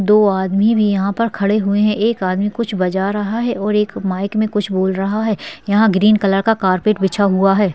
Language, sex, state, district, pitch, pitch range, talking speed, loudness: Hindi, female, Bihar, Madhepura, 205 Hz, 195-215 Hz, 230 wpm, -16 LUFS